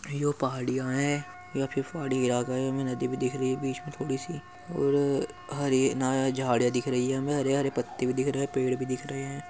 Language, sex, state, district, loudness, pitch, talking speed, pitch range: Hindi, male, Uttar Pradesh, Muzaffarnagar, -29 LUFS, 135 Hz, 240 wpm, 130-140 Hz